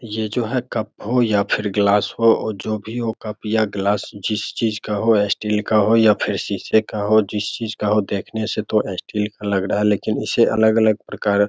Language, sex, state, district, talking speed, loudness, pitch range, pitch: Hindi, male, Bihar, Begusarai, 230 wpm, -20 LUFS, 105-110 Hz, 105 Hz